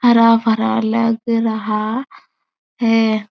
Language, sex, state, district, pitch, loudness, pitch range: Hindi, female, Uttar Pradesh, Etah, 225 Hz, -16 LUFS, 220-230 Hz